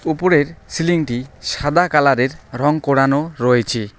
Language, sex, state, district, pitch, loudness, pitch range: Bengali, male, West Bengal, Alipurduar, 140 Hz, -17 LUFS, 125-160 Hz